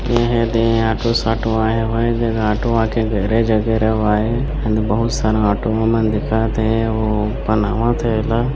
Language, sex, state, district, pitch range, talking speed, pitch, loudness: Chhattisgarhi, male, Chhattisgarh, Bilaspur, 110-115 Hz, 180 wpm, 110 Hz, -17 LUFS